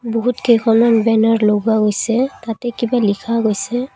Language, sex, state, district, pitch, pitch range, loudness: Assamese, female, Assam, Kamrup Metropolitan, 225 Hz, 220-240 Hz, -16 LUFS